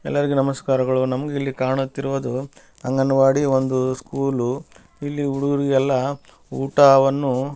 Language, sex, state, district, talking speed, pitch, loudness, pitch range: Kannada, male, Karnataka, Bellary, 95 wpm, 135 Hz, -20 LUFS, 130-140 Hz